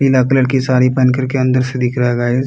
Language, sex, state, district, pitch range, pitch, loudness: Hindi, male, Bihar, Kishanganj, 125-130 Hz, 130 Hz, -14 LUFS